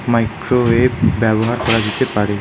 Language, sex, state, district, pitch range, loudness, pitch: Bengali, male, West Bengal, Alipurduar, 110-120 Hz, -16 LUFS, 115 Hz